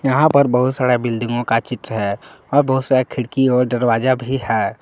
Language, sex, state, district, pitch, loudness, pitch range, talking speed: Hindi, male, Jharkhand, Palamu, 125 Hz, -17 LUFS, 115-130 Hz, 200 wpm